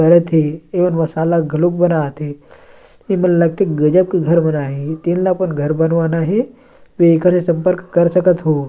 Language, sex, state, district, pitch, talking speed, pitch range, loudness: Chhattisgarhi, male, Chhattisgarh, Sarguja, 170 Hz, 175 wpm, 160-180 Hz, -15 LUFS